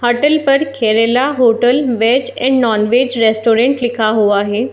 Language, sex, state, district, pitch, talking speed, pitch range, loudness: Hindi, female, Uttar Pradesh, Muzaffarnagar, 240 Hz, 140 wpm, 225-260 Hz, -13 LUFS